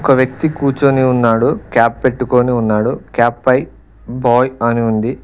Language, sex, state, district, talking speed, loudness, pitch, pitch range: Telugu, male, Telangana, Mahabubabad, 135 wpm, -14 LUFS, 125 Hz, 115-130 Hz